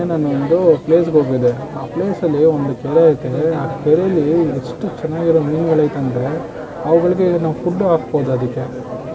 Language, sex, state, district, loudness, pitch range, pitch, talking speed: Kannada, male, Karnataka, Bangalore, -16 LUFS, 135-165 Hz, 155 Hz, 140 wpm